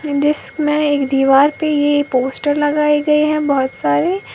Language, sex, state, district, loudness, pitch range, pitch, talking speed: Hindi, female, Uttar Pradesh, Lalitpur, -15 LUFS, 275-300 Hz, 295 Hz, 150 wpm